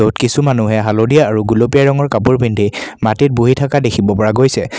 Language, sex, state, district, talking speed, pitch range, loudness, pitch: Assamese, male, Assam, Kamrup Metropolitan, 190 wpm, 110-140 Hz, -13 LUFS, 120 Hz